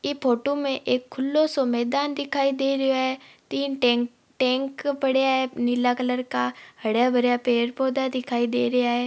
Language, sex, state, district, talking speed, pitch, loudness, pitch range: Marwari, female, Rajasthan, Nagaur, 180 wpm, 255 Hz, -24 LUFS, 245-275 Hz